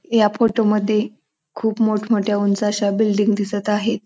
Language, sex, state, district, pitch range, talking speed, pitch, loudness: Marathi, female, Maharashtra, Pune, 205-220 Hz, 135 wpm, 210 Hz, -19 LUFS